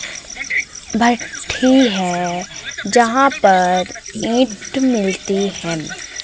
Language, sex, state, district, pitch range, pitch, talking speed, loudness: Hindi, female, Madhya Pradesh, Umaria, 180-245 Hz, 205 Hz, 65 wpm, -17 LUFS